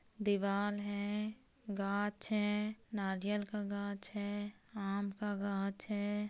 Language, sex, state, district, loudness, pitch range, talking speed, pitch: Hindi, female, Jharkhand, Sahebganj, -38 LUFS, 200-210 Hz, 115 wpm, 205 Hz